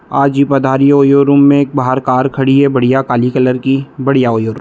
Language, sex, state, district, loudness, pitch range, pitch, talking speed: Hindi, male, Bihar, Muzaffarpur, -11 LUFS, 130-140 Hz, 135 Hz, 245 wpm